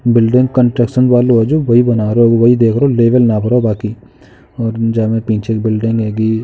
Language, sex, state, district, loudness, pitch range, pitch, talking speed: Hindi, male, Uttar Pradesh, Jalaun, -12 LUFS, 110-120 Hz, 115 Hz, 205 wpm